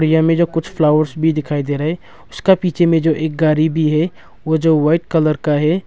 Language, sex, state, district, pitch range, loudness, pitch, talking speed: Hindi, male, Arunachal Pradesh, Longding, 155-165 Hz, -16 LUFS, 160 Hz, 245 wpm